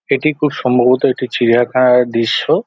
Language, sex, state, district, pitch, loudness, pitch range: Bengali, male, West Bengal, Jhargram, 125 Hz, -14 LUFS, 120-135 Hz